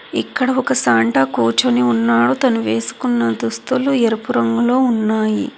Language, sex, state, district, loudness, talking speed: Telugu, female, Telangana, Hyderabad, -16 LUFS, 120 wpm